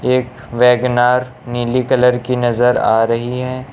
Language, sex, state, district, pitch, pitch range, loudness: Hindi, male, Uttar Pradesh, Lucknow, 125 Hz, 120-125 Hz, -15 LUFS